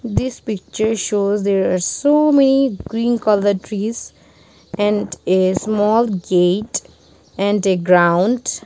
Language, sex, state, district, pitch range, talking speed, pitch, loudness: English, female, Nagaland, Dimapur, 190-230 Hz, 120 wpm, 205 Hz, -17 LUFS